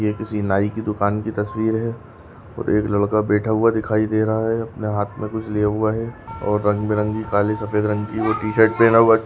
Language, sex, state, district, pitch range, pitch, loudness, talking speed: Hindi, female, Goa, North and South Goa, 105-110 Hz, 110 Hz, -20 LUFS, 205 wpm